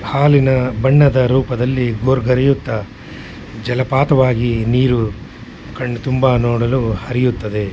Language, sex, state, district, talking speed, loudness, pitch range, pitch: Kannada, male, Karnataka, Shimoga, 75 wpm, -15 LUFS, 120-130 Hz, 125 Hz